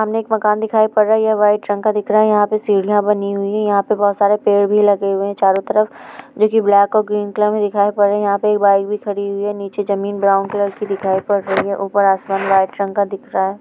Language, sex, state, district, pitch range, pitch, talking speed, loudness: Hindi, female, Bihar, Sitamarhi, 200-210 Hz, 205 Hz, 285 wpm, -16 LUFS